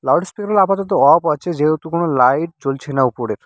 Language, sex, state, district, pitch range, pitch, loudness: Bengali, male, West Bengal, Cooch Behar, 135-175 Hz, 160 Hz, -16 LUFS